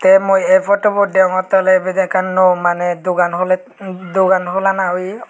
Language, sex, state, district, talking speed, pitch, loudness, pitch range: Chakma, male, Tripura, Unakoti, 170 wpm, 185 Hz, -14 LUFS, 185-195 Hz